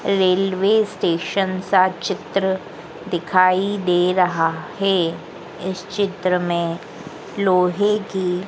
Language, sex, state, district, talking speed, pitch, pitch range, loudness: Hindi, female, Madhya Pradesh, Dhar, 90 wpm, 185 Hz, 180-195 Hz, -20 LUFS